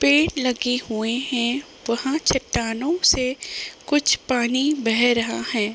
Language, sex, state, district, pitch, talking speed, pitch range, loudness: Hindi, female, Uttar Pradesh, Deoria, 250 Hz, 125 wpm, 235-285 Hz, -21 LUFS